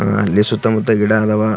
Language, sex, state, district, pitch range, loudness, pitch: Kannada, male, Karnataka, Gulbarga, 105-110 Hz, -15 LUFS, 110 Hz